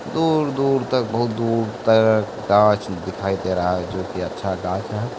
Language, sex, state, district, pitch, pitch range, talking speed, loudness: Hindi, male, Bihar, Kishanganj, 110 Hz, 95-120 Hz, 175 wpm, -20 LUFS